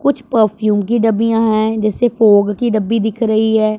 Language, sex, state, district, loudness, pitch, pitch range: Hindi, female, Punjab, Pathankot, -14 LUFS, 220 Hz, 215-225 Hz